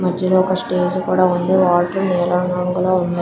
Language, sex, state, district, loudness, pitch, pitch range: Telugu, female, Andhra Pradesh, Visakhapatnam, -17 LUFS, 180 Hz, 180-185 Hz